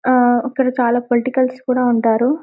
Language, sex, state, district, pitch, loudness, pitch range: Telugu, female, Telangana, Karimnagar, 250 Hz, -16 LUFS, 240-255 Hz